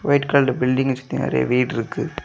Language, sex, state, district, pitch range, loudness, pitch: Tamil, male, Tamil Nadu, Kanyakumari, 120-140 Hz, -20 LUFS, 130 Hz